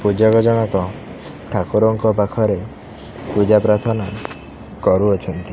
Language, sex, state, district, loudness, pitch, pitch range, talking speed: Odia, male, Odisha, Khordha, -17 LUFS, 105 Hz, 100-110 Hz, 75 wpm